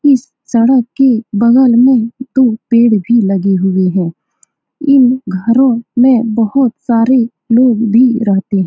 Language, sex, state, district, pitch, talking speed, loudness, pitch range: Hindi, female, Bihar, Saran, 235 Hz, 140 wpm, -11 LUFS, 220-255 Hz